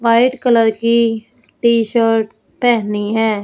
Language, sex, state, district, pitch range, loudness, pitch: Hindi, female, Punjab, Fazilka, 220-235 Hz, -15 LUFS, 230 Hz